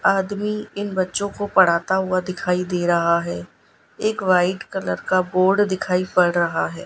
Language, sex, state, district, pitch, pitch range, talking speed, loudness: Hindi, female, Gujarat, Gandhinagar, 185 Hz, 175-195 Hz, 165 wpm, -20 LUFS